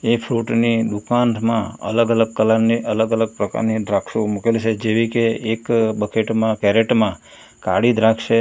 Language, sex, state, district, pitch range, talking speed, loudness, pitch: Gujarati, male, Gujarat, Valsad, 110-115 Hz, 155 wpm, -18 LUFS, 115 Hz